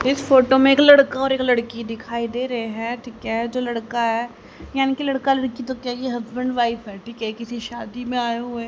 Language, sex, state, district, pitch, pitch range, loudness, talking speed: Hindi, female, Haryana, Charkhi Dadri, 240 Hz, 235-260 Hz, -20 LUFS, 235 wpm